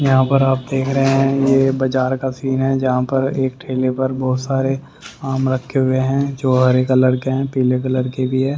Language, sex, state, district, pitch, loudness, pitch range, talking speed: Hindi, male, Haryana, Rohtak, 130 Hz, -17 LUFS, 130-135 Hz, 225 wpm